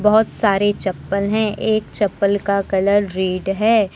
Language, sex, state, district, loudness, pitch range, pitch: Hindi, female, Jharkhand, Deoghar, -18 LUFS, 195-210 Hz, 200 Hz